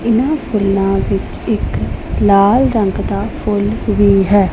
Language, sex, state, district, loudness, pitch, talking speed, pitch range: Punjabi, female, Punjab, Pathankot, -14 LUFS, 205 Hz, 135 wpm, 195-225 Hz